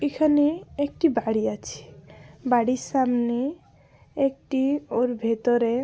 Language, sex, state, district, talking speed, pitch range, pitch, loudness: Bengali, female, West Bengal, Paschim Medinipur, 95 wpm, 240-285 Hz, 260 Hz, -24 LUFS